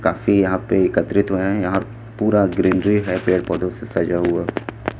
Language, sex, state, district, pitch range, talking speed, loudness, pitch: Hindi, male, Chhattisgarh, Raipur, 90-105 Hz, 180 wpm, -19 LUFS, 95 Hz